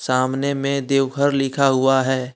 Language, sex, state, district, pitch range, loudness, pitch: Hindi, male, Jharkhand, Deoghar, 130-140 Hz, -19 LUFS, 135 Hz